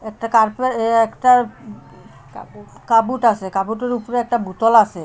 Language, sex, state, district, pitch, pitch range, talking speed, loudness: Bengali, female, Assam, Hailakandi, 230 Hz, 220-245 Hz, 120 wpm, -17 LUFS